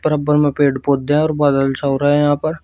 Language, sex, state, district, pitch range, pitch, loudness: Hindi, male, Uttar Pradesh, Shamli, 140-150 Hz, 145 Hz, -16 LUFS